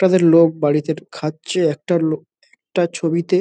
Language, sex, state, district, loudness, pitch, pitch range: Bengali, male, West Bengal, Kolkata, -18 LUFS, 165 Hz, 160-180 Hz